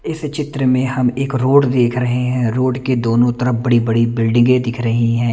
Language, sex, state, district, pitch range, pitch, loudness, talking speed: Hindi, male, Chandigarh, Chandigarh, 120-130 Hz, 125 Hz, -16 LUFS, 205 wpm